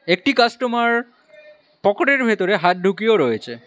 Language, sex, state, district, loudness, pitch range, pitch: Bengali, male, West Bengal, Alipurduar, -18 LUFS, 185-250 Hz, 220 Hz